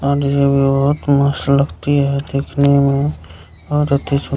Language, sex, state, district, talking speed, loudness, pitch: Hindi, male, Bihar, Kishanganj, 180 wpm, -16 LUFS, 140 Hz